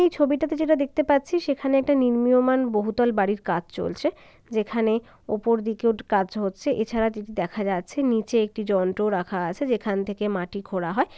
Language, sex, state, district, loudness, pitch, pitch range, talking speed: Bengali, female, West Bengal, Jalpaiguri, -24 LUFS, 225 Hz, 200-270 Hz, 160 wpm